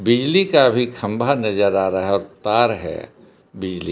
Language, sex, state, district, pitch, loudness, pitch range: Hindi, male, Jharkhand, Palamu, 105 Hz, -18 LUFS, 95-125 Hz